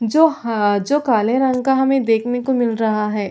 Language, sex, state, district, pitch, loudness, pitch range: Hindi, female, Chhattisgarh, Raigarh, 240 Hz, -17 LUFS, 220-265 Hz